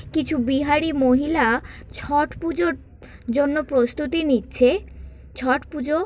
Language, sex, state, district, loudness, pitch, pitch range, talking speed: Bengali, female, West Bengal, Kolkata, -21 LUFS, 290 Hz, 260-310 Hz, 100 wpm